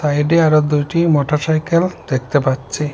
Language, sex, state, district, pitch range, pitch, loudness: Bengali, male, Assam, Hailakandi, 145-160 Hz, 150 Hz, -16 LUFS